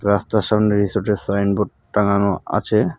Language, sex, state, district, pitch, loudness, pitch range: Bengali, male, West Bengal, Cooch Behar, 100 Hz, -19 LUFS, 100-105 Hz